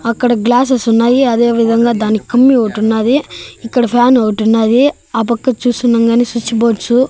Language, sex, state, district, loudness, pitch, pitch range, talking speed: Telugu, male, Andhra Pradesh, Annamaya, -12 LUFS, 235 Hz, 230-245 Hz, 160 wpm